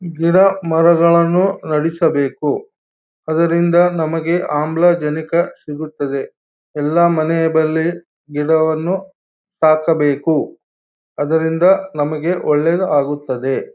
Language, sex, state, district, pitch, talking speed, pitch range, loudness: Kannada, male, Karnataka, Bijapur, 165 Hz, 65 wpm, 150-170 Hz, -16 LUFS